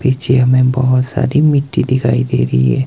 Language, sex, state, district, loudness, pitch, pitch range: Hindi, male, Himachal Pradesh, Shimla, -13 LUFS, 130 Hz, 120-130 Hz